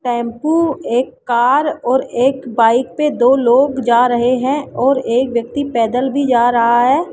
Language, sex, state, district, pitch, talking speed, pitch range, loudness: Hindi, female, Rajasthan, Jaipur, 250 Hz, 170 wpm, 240-275 Hz, -15 LUFS